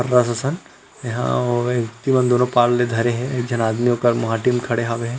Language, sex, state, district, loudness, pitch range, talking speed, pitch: Chhattisgarhi, male, Chhattisgarh, Rajnandgaon, -19 LUFS, 115-125 Hz, 210 wpm, 120 Hz